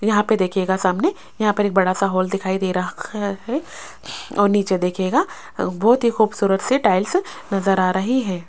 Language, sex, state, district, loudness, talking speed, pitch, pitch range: Hindi, female, Rajasthan, Jaipur, -20 LUFS, 185 wpm, 195 Hz, 185-215 Hz